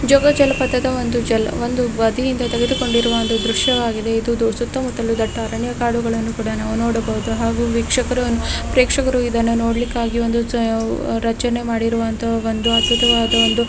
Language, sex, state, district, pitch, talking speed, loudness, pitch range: Kannada, female, Karnataka, Dharwad, 235 Hz, 135 wpm, -18 LUFS, 230-245 Hz